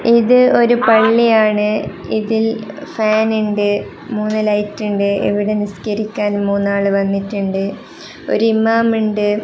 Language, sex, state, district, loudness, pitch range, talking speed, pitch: Malayalam, female, Kerala, Kasaragod, -15 LUFS, 205-225 Hz, 100 wpm, 215 Hz